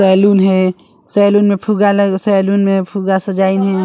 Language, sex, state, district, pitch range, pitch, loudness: Chhattisgarhi, male, Chhattisgarh, Sarguja, 190-200 Hz, 195 Hz, -13 LUFS